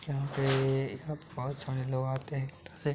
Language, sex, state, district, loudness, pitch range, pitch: Hindi, male, Bihar, Araria, -33 LUFS, 135-145 Hz, 135 Hz